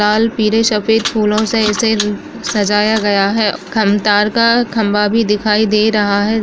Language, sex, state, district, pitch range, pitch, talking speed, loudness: Kumaoni, female, Uttarakhand, Uttarkashi, 210-220 Hz, 215 Hz, 170 wpm, -13 LUFS